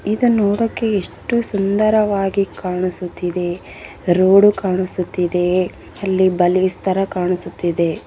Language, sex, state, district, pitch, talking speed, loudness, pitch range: Kannada, female, Karnataka, Bellary, 190 Hz, 105 wpm, -18 LUFS, 180-205 Hz